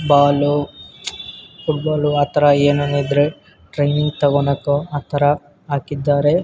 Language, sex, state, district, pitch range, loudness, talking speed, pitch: Kannada, male, Karnataka, Bellary, 145-150 Hz, -18 LUFS, 95 wpm, 145 Hz